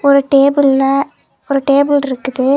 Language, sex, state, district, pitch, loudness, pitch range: Tamil, female, Tamil Nadu, Kanyakumari, 275 Hz, -13 LUFS, 270-280 Hz